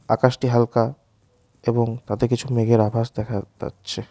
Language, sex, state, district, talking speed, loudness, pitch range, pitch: Bengali, male, West Bengal, Alipurduar, 145 wpm, -22 LUFS, 110-125 Hz, 115 Hz